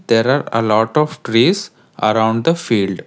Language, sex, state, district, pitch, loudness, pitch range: English, male, Karnataka, Bangalore, 115 Hz, -16 LUFS, 110-140 Hz